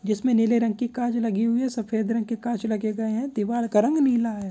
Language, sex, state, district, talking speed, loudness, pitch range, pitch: Hindi, female, Bihar, Samastipur, 250 wpm, -24 LUFS, 220-240 Hz, 230 Hz